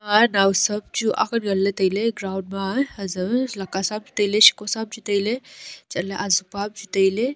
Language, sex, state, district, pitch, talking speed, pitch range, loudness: Wancho, female, Arunachal Pradesh, Longding, 205 Hz, 170 wpm, 195-225 Hz, -21 LUFS